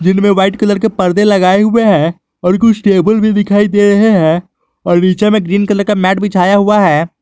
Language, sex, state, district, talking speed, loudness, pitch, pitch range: Hindi, male, Jharkhand, Garhwa, 215 wpm, -10 LUFS, 200 Hz, 185-210 Hz